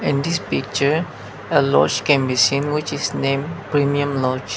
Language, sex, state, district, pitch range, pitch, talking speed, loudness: English, male, Nagaland, Dimapur, 130-145 Hz, 140 Hz, 170 wpm, -19 LUFS